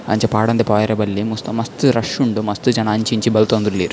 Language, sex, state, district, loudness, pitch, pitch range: Tulu, male, Karnataka, Dakshina Kannada, -17 LUFS, 110 Hz, 105-115 Hz